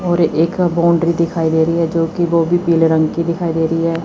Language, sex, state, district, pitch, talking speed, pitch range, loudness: Hindi, female, Chandigarh, Chandigarh, 165 Hz, 280 wpm, 165-170 Hz, -15 LUFS